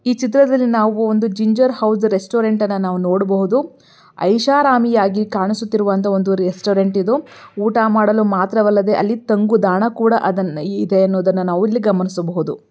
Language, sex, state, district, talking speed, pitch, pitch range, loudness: Kannada, female, Karnataka, Belgaum, 105 wpm, 210 Hz, 195-225 Hz, -16 LUFS